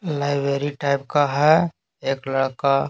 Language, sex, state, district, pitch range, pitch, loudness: Hindi, male, Bihar, Patna, 135-145 Hz, 140 Hz, -21 LUFS